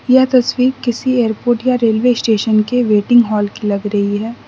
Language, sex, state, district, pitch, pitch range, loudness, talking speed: Hindi, female, Mizoram, Aizawl, 235 Hz, 215-250 Hz, -14 LUFS, 185 wpm